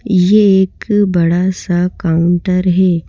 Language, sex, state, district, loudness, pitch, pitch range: Hindi, female, Madhya Pradesh, Bhopal, -13 LUFS, 185 Hz, 175-190 Hz